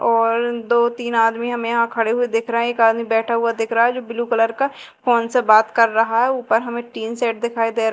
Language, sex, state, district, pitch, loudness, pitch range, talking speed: Hindi, female, Madhya Pradesh, Dhar, 230 Hz, -18 LUFS, 225-235 Hz, 265 wpm